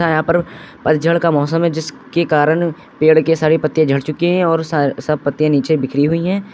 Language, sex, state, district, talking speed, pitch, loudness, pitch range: Hindi, male, Uttar Pradesh, Lucknow, 200 wpm, 155 Hz, -16 LUFS, 150-165 Hz